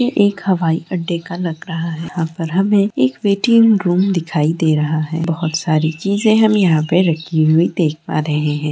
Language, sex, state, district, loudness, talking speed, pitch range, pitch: Hindi, female, Bihar, Saran, -16 LUFS, 205 wpm, 160-195 Hz, 170 Hz